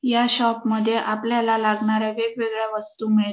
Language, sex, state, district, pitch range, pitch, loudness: Marathi, female, Maharashtra, Dhule, 215-230 Hz, 225 Hz, -22 LUFS